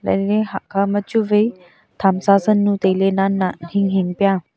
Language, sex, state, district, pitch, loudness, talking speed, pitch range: Wancho, female, Arunachal Pradesh, Longding, 195 Hz, -18 LUFS, 130 wpm, 190-205 Hz